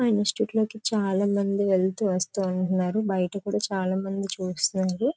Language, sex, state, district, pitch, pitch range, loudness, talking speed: Telugu, female, Andhra Pradesh, Chittoor, 195 Hz, 185-210 Hz, -26 LUFS, 130 wpm